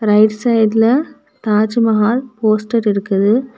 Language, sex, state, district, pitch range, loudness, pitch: Tamil, female, Tamil Nadu, Kanyakumari, 210-235 Hz, -14 LUFS, 220 Hz